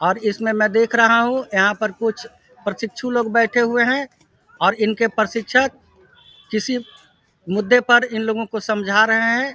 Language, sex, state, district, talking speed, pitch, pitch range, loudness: Hindi, male, Bihar, Vaishali, 165 wpm, 230 Hz, 215-240 Hz, -18 LUFS